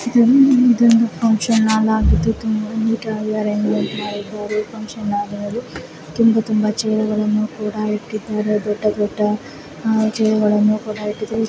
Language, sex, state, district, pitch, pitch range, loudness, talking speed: Kannada, female, Karnataka, Chamarajanagar, 215 Hz, 210-225 Hz, -18 LUFS, 115 wpm